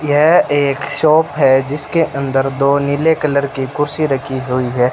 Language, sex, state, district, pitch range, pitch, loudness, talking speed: Hindi, male, Rajasthan, Bikaner, 135-150 Hz, 140 Hz, -14 LUFS, 170 wpm